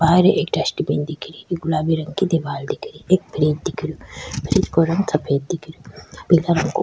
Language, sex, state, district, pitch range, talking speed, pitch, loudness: Rajasthani, female, Rajasthan, Churu, 150-175 Hz, 185 wpm, 165 Hz, -20 LUFS